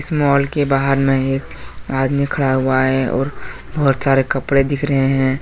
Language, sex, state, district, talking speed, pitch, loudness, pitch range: Hindi, male, Jharkhand, Deoghar, 175 wpm, 135 Hz, -17 LUFS, 130-140 Hz